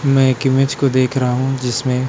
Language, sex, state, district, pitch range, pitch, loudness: Hindi, male, Chhattisgarh, Raipur, 125-135 Hz, 130 Hz, -16 LUFS